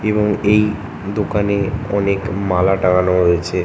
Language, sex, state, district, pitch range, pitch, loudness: Bengali, male, West Bengal, North 24 Parganas, 90-105 Hz, 100 Hz, -17 LUFS